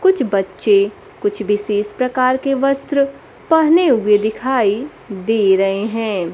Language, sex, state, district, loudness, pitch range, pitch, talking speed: Hindi, female, Bihar, Kaimur, -16 LUFS, 205-270 Hz, 220 Hz, 125 wpm